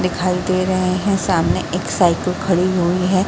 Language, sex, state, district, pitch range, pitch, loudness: Hindi, female, Bihar, Saharsa, 180-185 Hz, 185 Hz, -18 LUFS